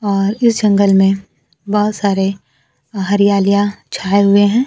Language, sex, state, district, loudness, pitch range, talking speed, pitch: Hindi, female, Bihar, Kaimur, -14 LUFS, 195-205 Hz, 130 wpm, 200 Hz